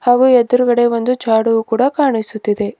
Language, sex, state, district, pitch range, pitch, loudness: Kannada, female, Karnataka, Bidar, 225-250 Hz, 240 Hz, -14 LUFS